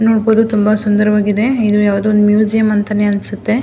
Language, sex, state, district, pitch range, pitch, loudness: Kannada, female, Karnataka, Mysore, 210-220 Hz, 210 Hz, -13 LUFS